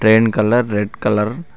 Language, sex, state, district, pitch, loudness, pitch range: Telugu, male, Telangana, Mahabubabad, 110 Hz, -16 LUFS, 105-115 Hz